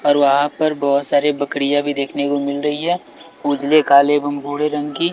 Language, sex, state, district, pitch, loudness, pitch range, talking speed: Hindi, male, Bihar, West Champaran, 145 Hz, -17 LUFS, 140-150 Hz, 210 wpm